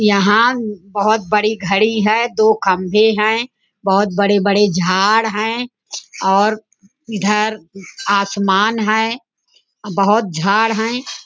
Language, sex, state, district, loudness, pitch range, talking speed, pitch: Hindi, female, Maharashtra, Nagpur, -15 LUFS, 200-220 Hz, 105 wpm, 210 Hz